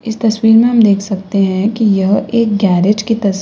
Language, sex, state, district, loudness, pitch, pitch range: Hindi, female, Uttar Pradesh, Lalitpur, -12 LUFS, 205 Hz, 195-225 Hz